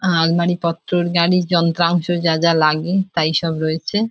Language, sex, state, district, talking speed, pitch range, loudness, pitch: Bengali, female, West Bengal, Jhargram, 130 wpm, 165-175 Hz, -17 LUFS, 170 Hz